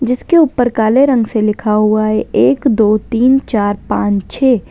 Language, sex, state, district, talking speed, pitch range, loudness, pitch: Hindi, female, Uttar Pradesh, Lalitpur, 180 wpm, 215-255 Hz, -13 LUFS, 225 Hz